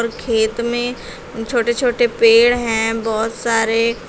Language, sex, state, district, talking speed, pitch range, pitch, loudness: Hindi, female, Uttar Pradesh, Shamli, 130 wpm, 225-240 Hz, 230 Hz, -16 LUFS